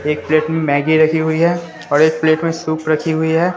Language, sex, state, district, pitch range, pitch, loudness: Hindi, male, Bihar, Katihar, 155-160 Hz, 160 Hz, -15 LUFS